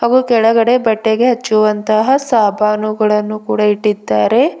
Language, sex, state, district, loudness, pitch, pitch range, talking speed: Kannada, female, Karnataka, Bidar, -13 LUFS, 215 Hz, 210-235 Hz, 90 wpm